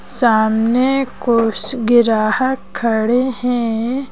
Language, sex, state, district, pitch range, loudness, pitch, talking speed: Hindi, female, Madhya Pradesh, Bhopal, 225-255 Hz, -16 LUFS, 240 Hz, 75 wpm